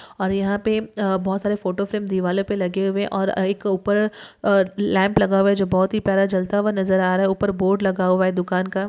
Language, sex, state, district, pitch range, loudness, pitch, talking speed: Hindi, female, Maharashtra, Chandrapur, 190-205 Hz, -21 LUFS, 195 Hz, 245 wpm